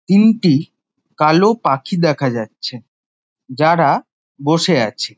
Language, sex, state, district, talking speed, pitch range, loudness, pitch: Bengali, male, West Bengal, Jhargram, 90 wpm, 135-175 Hz, -15 LUFS, 160 Hz